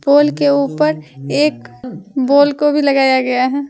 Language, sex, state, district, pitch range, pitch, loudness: Hindi, female, Jharkhand, Deoghar, 250-285 Hz, 275 Hz, -14 LUFS